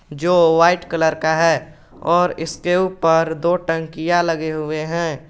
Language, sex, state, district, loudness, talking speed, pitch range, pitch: Hindi, male, Jharkhand, Garhwa, -18 LUFS, 145 wpm, 160-175 Hz, 165 Hz